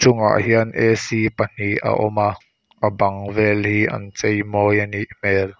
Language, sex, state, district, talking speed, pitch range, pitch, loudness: Mizo, male, Mizoram, Aizawl, 170 wpm, 100-110 Hz, 105 Hz, -19 LUFS